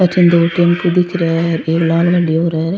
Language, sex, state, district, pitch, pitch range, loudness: Rajasthani, female, Rajasthan, Churu, 170 Hz, 165-175 Hz, -13 LUFS